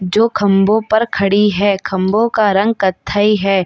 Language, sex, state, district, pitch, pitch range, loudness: Hindi, female, Uttar Pradesh, Lalitpur, 205 Hz, 195-215 Hz, -14 LUFS